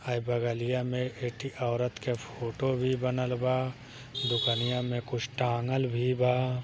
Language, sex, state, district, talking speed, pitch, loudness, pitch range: Hindi, male, Uttar Pradesh, Deoria, 155 wpm, 125 Hz, -30 LUFS, 120-130 Hz